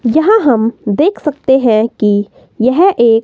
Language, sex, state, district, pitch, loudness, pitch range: Hindi, female, Himachal Pradesh, Shimla, 235 Hz, -12 LUFS, 220-300 Hz